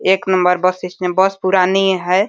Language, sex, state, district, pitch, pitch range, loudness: Hindi, female, Uttar Pradesh, Deoria, 185 Hz, 180-190 Hz, -15 LUFS